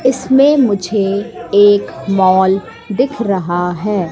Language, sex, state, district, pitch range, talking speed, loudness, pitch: Hindi, female, Madhya Pradesh, Katni, 190-230 Hz, 100 wpm, -14 LUFS, 200 Hz